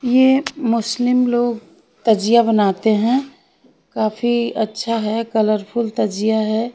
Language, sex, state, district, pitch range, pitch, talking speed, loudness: Hindi, female, Haryana, Rohtak, 220-245 Hz, 230 Hz, 105 wpm, -18 LUFS